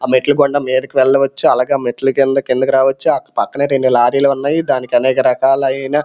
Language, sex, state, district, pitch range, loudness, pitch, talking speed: Telugu, male, Andhra Pradesh, Srikakulam, 130-140 Hz, -14 LUFS, 135 Hz, 180 wpm